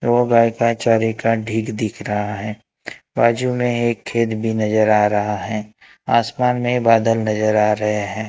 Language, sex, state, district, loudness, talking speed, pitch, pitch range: Hindi, male, Maharashtra, Gondia, -18 LUFS, 180 wpm, 110 Hz, 105-115 Hz